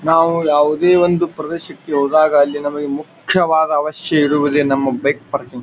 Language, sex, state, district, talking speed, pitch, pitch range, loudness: Kannada, male, Karnataka, Bijapur, 140 wpm, 150 Hz, 145-165 Hz, -16 LUFS